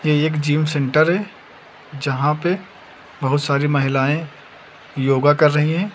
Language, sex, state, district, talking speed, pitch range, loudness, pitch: Hindi, male, Uttar Pradesh, Lucknow, 140 wpm, 140-155 Hz, -18 LUFS, 150 Hz